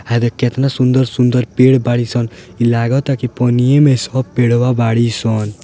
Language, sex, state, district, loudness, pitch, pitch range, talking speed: Bhojpuri, male, Bihar, Gopalganj, -14 LUFS, 120 Hz, 115-130 Hz, 150 wpm